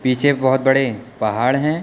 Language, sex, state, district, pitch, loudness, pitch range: Hindi, male, Uttar Pradesh, Lucknow, 130 Hz, -17 LUFS, 125-140 Hz